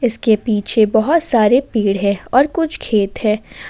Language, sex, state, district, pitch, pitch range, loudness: Hindi, female, Jharkhand, Ranchi, 220 Hz, 210-255 Hz, -16 LUFS